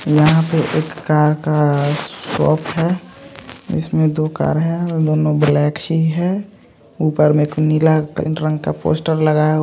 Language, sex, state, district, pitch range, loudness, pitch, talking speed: Hindi, male, Andhra Pradesh, Krishna, 150-160 Hz, -17 LUFS, 155 Hz, 135 wpm